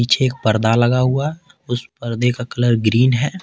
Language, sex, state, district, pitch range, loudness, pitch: Hindi, male, Jharkhand, Ranchi, 120-130 Hz, -17 LUFS, 125 Hz